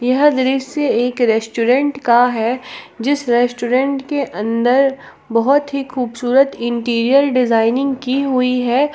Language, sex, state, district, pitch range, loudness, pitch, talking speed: Hindi, female, Jharkhand, Palamu, 240-275 Hz, -16 LUFS, 255 Hz, 120 wpm